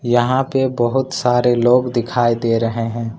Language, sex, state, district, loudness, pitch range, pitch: Hindi, male, Jharkhand, Ranchi, -17 LUFS, 115-125 Hz, 120 Hz